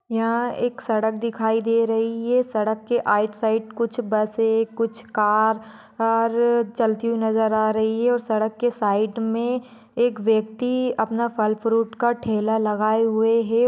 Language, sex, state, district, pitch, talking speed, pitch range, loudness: Magahi, female, Bihar, Gaya, 225 Hz, 155 wpm, 220-235 Hz, -22 LUFS